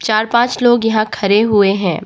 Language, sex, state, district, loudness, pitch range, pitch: Hindi, female, Arunachal Pradesh, Papum Pare, -13 LUFS, 205-235 Hz, 215 Hz